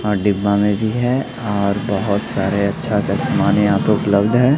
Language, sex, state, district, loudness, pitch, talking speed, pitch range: Hindi, male, Bihar, Katihar, -17 LUFS, 105 Hz, 195 wpm, 100-105 Hz